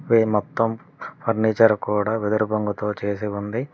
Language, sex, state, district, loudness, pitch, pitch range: Telugu, male, Telangana, Mahabubabad, -22 LUFS, 110 Hz, 105-115 Hz